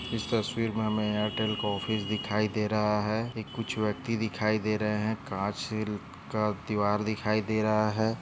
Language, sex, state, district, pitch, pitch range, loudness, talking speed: Hindi, male, Maharashtra, Aurangabad, 110 Hz, 105-110 Hz, -30 LUFS, 185 wpm